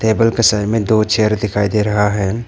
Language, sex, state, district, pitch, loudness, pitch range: Hindi, male, Arunachal Pradesh, Papum Pare, 105 Hz, -15 LUFS, 105-110 Hz